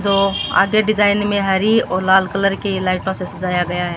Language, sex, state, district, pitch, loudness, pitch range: Hindi, female, Rajasthan, Bikaner, 195 Hz, -17 LUFS, 185-205 Hz